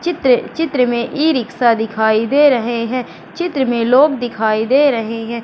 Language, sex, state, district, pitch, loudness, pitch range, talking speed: Hindi, female, Madhya Pradesh, Katni, 245 Hz, -15 LUFS, 230-285 Hz, 165 wpm